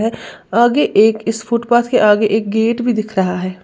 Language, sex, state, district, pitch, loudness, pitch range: Hindi, female, Uttar Pradesh, Lalitpur, 220 Hz, -15 LUFS, 210-235 Hz